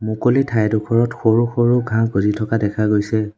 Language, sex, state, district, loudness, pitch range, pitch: Assamese, male, Assam, Sonitpur, -17 LUFS, 110-120 Hz, 110 Hz